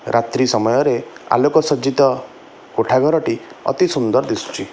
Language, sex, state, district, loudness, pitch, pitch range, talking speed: Odia, male, Odisha, Khordha, -17 LUFS, 135 Hz, 115-145 Hz, 115 wpm